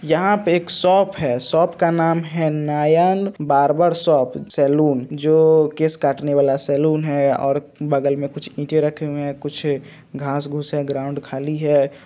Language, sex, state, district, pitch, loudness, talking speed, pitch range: Hindi, male, Jharkhand, Jamtara, 150 Hz, -18 LUFS, 170 wpm, 140-160 Hz